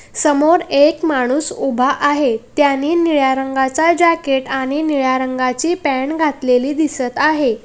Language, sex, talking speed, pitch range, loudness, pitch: Marathi, female, 125 wpm, 260-310 Hz, -15 LUFS, 280 Hz